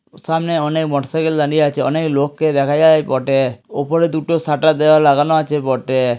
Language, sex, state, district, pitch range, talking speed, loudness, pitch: Bengali, male, West Bengal, Jhargram, 140-160 Hz, 165 wpm, -16 LUFS, 150 Hz